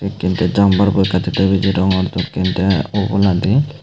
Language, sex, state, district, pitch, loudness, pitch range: Chakma, male, Tripura, Unakoti, 95 Hz, -16 LUFS, 95-100 Hz